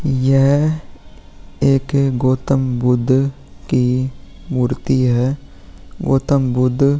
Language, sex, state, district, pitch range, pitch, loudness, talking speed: Hindi, male, Bihar, Vaishali, 125-135 Hz, 130 Hz, -17 LUFS, 85 wpm